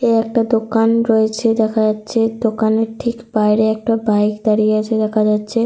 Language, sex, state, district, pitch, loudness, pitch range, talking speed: Bengali, female, Jharkhand, Sahebganj, 220 Hz, -16 LUFS, 215-230 Hz, 160 wpm